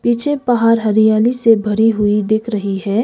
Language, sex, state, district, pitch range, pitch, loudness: Hindi, female, Sikkim, Gangtok, 210-230 Hz, 220 Hz, -14 LUFS